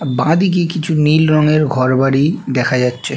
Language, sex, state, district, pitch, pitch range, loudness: Bengali, male, West Bengal, Jhargram, 150 Hz, 130-160 Hz, -14 LUFS